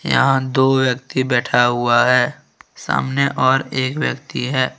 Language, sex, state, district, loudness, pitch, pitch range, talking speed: Hindi, male, Jharkhand, Ranchi, -17 LUFS, 130 Hz, 125-135 Hz, 140 wpm